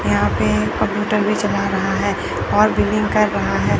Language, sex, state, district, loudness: Hindi, male, Chandigarh, Chandigarh, -18 LUFS